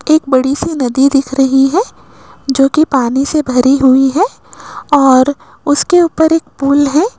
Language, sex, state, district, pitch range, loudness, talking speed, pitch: Hindi, female, Rajasthan, Jaipur, 270-315 Hz, -11 LUFS, 165 wpm, 280 Hz